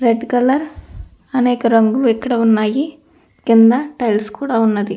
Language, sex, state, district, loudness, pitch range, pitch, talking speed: Telugu, female, Andhra Pradesh, Krishna, -15 LUFS, 225-265 Hz, 235 Hz, 120 wpm